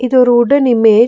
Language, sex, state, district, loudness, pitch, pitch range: Tamil, female, Tamil Nadu, Nilgiris, -10 LUFS, 245 Hz, 235-255 Hz